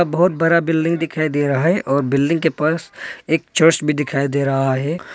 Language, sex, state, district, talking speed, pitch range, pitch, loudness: Hindi, male, Arunachal Pradesh, Papum Pare, 210 wpm, 140-165 Hz, 155 Hz, -18 LUFS